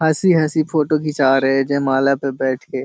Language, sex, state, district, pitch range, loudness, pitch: Hindi, male, Bihar, Jahanabad, 135-155 Hz, -17 LUFS, 140 Hz